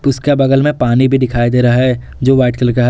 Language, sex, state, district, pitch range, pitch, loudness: Hindi, male, Jharkhand, Garhwa, 120-135 Hz, 130 Hz, -12 LUFS